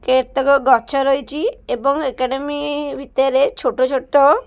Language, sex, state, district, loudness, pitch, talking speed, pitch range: Odia, female, Odisha, Khordha, -18 LUFS, 275 Hz, 120 wpm, 265-285 Hz